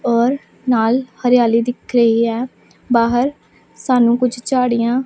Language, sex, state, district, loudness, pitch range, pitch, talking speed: Punjabi, female, Punjab, Pathankot, -16 LUFS, 235-250 Hz, 240 Hz, 120 wpm